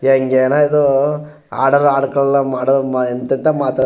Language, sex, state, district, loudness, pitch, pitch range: Kannada, male, Karnataka, Chamarajanagar, -15 LUFS, 135 Hz, 130-145 Hz